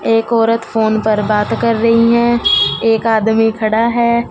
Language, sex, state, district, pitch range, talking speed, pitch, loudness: Hindi, female, Punjab, Fazilka, 220-230 Hz, 165 wpm, 225 Hz, -13 LUFS